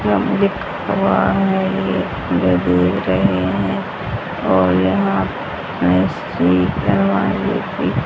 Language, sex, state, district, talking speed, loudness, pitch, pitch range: Hindi, female, Haryana, Rohtak, 60 wpm, -17 LUFS, 95 Hz, 90-100 Hz